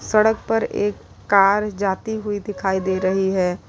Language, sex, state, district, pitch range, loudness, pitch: Hindi, female, Uttar Pradesh, Lalitpur, 190-210 Hz, -20 LUFS, 200 Hz